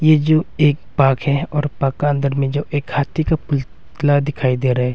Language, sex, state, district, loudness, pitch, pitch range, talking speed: Hindi, male, Arunachal Pradesh, Longding, -18 LUFS, 145 Hz, 135-150 Hz, 205 wpm